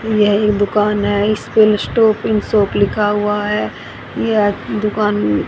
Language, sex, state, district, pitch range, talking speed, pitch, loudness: Hindi, female, Haryana, Rohtak, 205-215 Hz, 155 wpm, 210 Hz, -15 LUFS